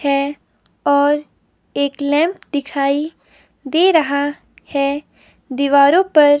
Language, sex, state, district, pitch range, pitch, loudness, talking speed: Hindi, female, Himachal Pradesh, Shimla, 280-300 Hz, 285 Hz, -17 LUFS, 95 wpm